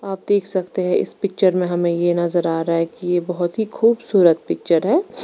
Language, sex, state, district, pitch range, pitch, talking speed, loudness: Hindi, female, Bihar, Patna, 175-200 Hz, 180 Hz, 230 wpm, -18 LUFS